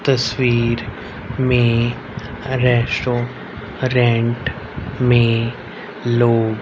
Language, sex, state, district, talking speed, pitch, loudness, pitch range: Hindi, male, Haryana, Rohtak, 55 wpm, 120 Hz, -18 LUFS, 115-125 Hz